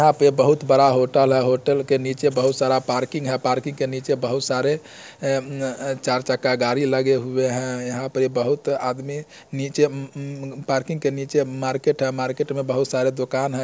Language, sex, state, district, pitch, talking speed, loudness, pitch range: Hindi, male, Bihar, Muzaffarpur, 135 Hz, 195 wpm, -21 LUFS, 130-140 Hz